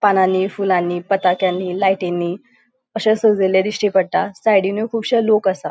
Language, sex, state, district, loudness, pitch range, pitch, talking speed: Konkani, female, Goa, North and South Goa, -17 LUFS, 185-220 Hz, 195 Hz, 125 wpm